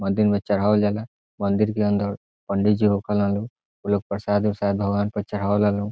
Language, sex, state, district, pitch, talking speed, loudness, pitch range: Bhojpuri, male, Bihar, Saran, 105 Hz, 180 wpm, -23 LUFS, 100-105 Hz